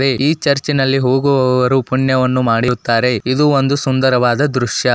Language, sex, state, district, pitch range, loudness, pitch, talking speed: Kannada, male, Karnataka, Dakshina Kannada, 125-140 Hz, -14 LUFS, 130 Hz, 110 wpm